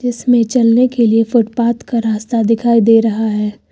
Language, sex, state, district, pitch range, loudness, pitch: Hindi, female, Uttar Pradesh, Lucknow, 225-240 Hz, -13 LUFS, 230 Hz